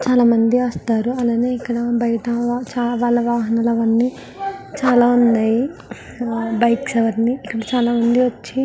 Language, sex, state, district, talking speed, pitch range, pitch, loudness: Telugu, female, Andhra Pradesh, Visakhapatnam, 110 wpm, 230-245 Hz, 240 Hz, -18 LUFS